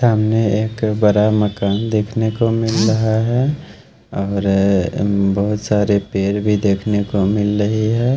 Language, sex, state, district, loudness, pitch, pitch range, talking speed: Hindi, male, Haryana, Charkhi Dadri, -17 LUFS, 105 Hz, 100-110 Hz, 140 wpm